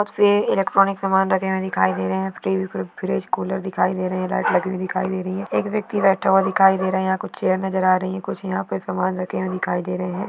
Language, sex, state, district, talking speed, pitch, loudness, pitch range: Hindi, female, Maharashtra, Dhule, 280 wpm, 185 Hz, -21 LUFS, 175-190 Hz